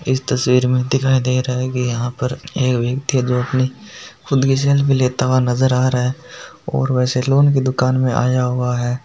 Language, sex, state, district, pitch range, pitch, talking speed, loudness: Hindi, male, Rajasthan, Nagaur, 125-130 Hz, 130 Hz, 210 wpm, -17 LUFS